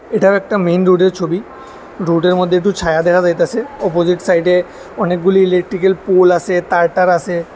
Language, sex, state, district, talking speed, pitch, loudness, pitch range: Bengali, male, Tripura, West Tripura, 185 wpm, 180 Hz, -14 LUFS, 175-190 Hz